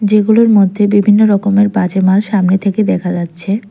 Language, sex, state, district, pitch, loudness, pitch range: Bengali, female, Tripura, West Tripura, 200 Hz, -11 LUFS, 190-210 Hz